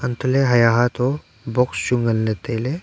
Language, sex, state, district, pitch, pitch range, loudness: Wancho, male, Arunachal Pradesh, Longding, 125 Hz, 115-130 Hz, -19 LUFS